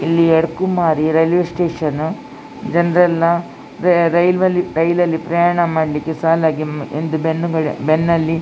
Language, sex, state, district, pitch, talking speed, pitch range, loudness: Kannada, female, Karnataka, Dakshina Kannada, 165 Hz, 100 wpm, 160-175 Hz, -16 LUFS